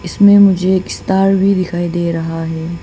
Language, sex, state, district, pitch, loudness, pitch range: Hindi, female, Arunachal Pradesh, Papum Pare, 180 Hz, -13 LUFS, 170-195 Hz